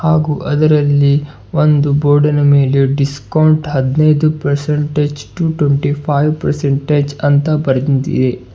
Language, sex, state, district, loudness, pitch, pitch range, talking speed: Kannada, male, Karnataka, Bidar, -13 LUFS, 145 Hz, 140-150 Hz, 100 wpm